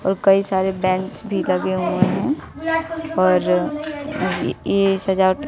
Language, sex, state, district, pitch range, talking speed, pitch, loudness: Hindi, female, Bihar, West Champaran, 185-295 Hz, 120 wpm, 190 Hz, -20 LUFS